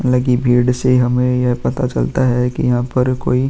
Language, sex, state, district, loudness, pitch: Hindi, male, Uttar Pradesh, Jalaun, -16 LUFS, 125 Hz